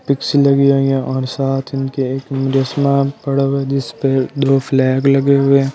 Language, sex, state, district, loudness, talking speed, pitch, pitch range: Hindi, male, Delhi, New Delhi, -15 LUFS, 50 wpm, 135 Hz, 135-140 Hz